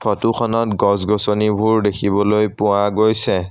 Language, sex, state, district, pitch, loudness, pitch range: Assamese, male, Assam, Sonitpur, 105 Hz, -17 LUFS, 100-110 Hz